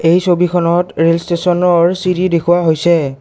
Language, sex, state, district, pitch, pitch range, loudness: Assamese, male, Assam, Kamrup Metropolitan, 175 Hz, 170-180 Hz, -13 LUFS